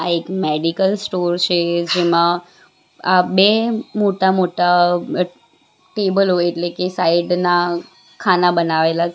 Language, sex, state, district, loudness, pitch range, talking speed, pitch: Gujarati, female, Gujarat, Valsad, -17 LUFS, 170-190 Hz, 120 wpm, 175 Hz